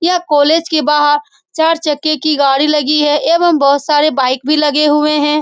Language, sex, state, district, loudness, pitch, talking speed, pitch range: Hindi, female, Bihar, Saran, -12 LUFS, 300 Hz, 200 wpm, 295-310 Hz